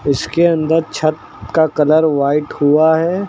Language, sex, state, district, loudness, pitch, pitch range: Hindi, male, Uttar Pradesh, Lucknow, -14 LUFS, 155 Hz, 150-160 Hz